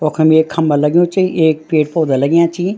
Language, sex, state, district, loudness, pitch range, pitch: Garhwali, female, Uttarakhand, Tehri Garhwal, -13 LUFS, 155-170 Hz, 160 Hz